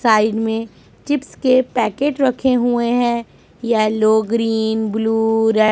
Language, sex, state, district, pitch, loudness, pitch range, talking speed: Hindi, male, Punjab, Pathankot, 225 Hz, -17 LUFS, 220-245 Hz, 125 wpm